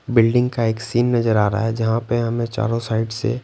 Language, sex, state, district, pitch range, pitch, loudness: Hindi, male, Bihar, Patna, 115-120 Hz, 115 Hz, -20 LUFS